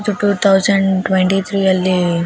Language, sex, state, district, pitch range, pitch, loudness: Kannada, female, Karnataka, Raichur, 185-200 Hz, 195 Hz, -14 LUFS